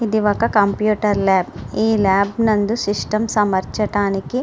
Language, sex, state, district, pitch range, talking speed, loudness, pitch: Telugu, female, Andhra Pradesh, Srikakulam, 200-220 Hz, 150 wpm, -18 LUFS, 210 Hz